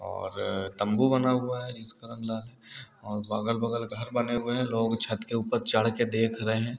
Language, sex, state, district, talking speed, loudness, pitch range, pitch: Hindi, male, Uttar Pradesh, Hamirpur, 205 wpm, -29 LUFS, 110-120 Hz, 115 Hz